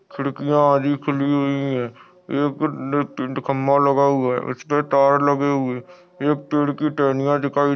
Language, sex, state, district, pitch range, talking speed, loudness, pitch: Hindi, male, Maharashtra, Aurangabad, 140-145 Hz, 170 wpm, -20 LUFS, 140 Hz